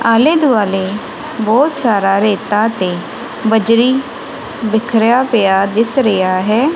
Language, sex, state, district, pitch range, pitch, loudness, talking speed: Punjabi, female, Punjab, Kapurthala, 200-250 Hz, 225 Hz, -13 LUFS, 105 wpm